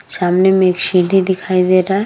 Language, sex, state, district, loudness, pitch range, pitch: Hindi, female, Bihar, Vaishali, -13 LUFS, 180-190 Hz, 185 Hz